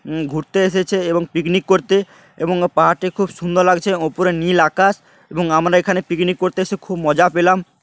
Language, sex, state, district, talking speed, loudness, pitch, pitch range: Bengali, male, West Bengal, Paschim Medinipur, 185 wpm, -17 LUFS, 180 Hz, 170-190 Hz